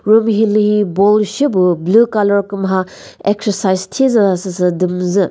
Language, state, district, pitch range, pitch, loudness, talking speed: Chakhesang, Nagaland, Dimapur, 185-215 Hz, 200 Hz, -14 LUFS, 145 wpm